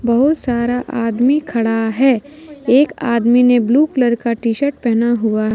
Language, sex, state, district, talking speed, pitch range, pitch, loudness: Hindi, female, Jharkhand, Deoghar, 160 wpm, 230-270 Hz, 240 Hz, -15 LUFS